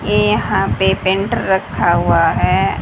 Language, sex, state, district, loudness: Hindi, female, Haryana, Charkhi Dadri, -15 LUFS